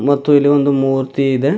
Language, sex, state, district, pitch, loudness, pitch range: Kannada, male, Karnataka, Bidar, 140 Hz, -14 LUFS, 135-145 Hz